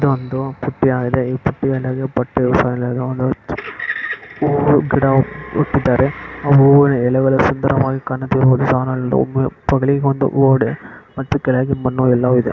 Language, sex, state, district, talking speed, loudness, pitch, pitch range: Kannada, male, Karnataka, Bellary, 80 wpm, -16 LUFS, 135 Hz, 130-135 Hz